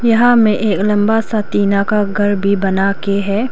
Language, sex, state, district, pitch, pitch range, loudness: Hindi, female, Arunachal Pradesh, Lower Dibang Valley, 205 Hz, 200-220 Hz, -14 LUFS